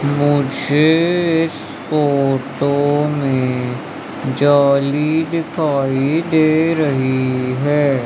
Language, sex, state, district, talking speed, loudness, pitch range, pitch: Hindi, male, Madhya Pradesh, Umaria, 65 wpm, -16 LUFS, 135-155 Hz, 145 Hz